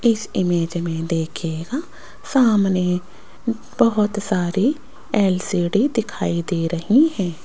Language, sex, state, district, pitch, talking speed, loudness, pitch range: Hindi, female, Rajasthan, Jaipur, 195 Hz, 95 wpm, -20 LUFS, 170-235 Hz